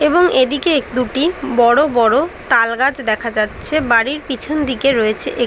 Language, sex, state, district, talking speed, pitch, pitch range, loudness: Bengali, female, West Bengal, Dakshin Dinajpur, 165 wpm, 260 Hz, 235-295 Hz, -15 LUFS